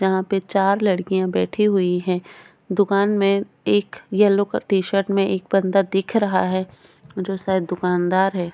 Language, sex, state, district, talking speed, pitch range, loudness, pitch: Hindi, female, Goa, North and South Goa, 160 wpm, 185-200 Hz, -20 LUFS, 195 Hz